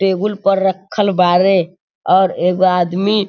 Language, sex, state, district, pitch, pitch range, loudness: Hindi, male, Bihar, Sitamarhi, 190 Hz, 180-195 Hz, -14 LUFS